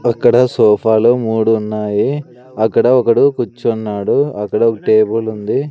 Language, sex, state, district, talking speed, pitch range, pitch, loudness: Telugu, male, Andhra Pradesh, Sri Satya Sai, 125 wpm, 110-125 Hz, 115 Hz, -14 LUFS